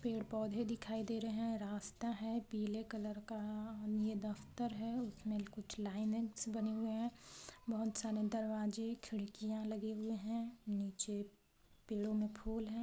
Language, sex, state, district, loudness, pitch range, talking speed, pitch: Hindi, female, Chhattisgarh, Balrampur, -42 LUFS, 210-225 Hz, 150 wpm, 220 Hz